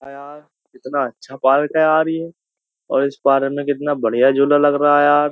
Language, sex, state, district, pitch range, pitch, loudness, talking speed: Hindi, male, Uttar Pradesh, Jyotiba Phule Nagar, 135-145 Hz, 145 Hz, -17 LUFS, 205 wpm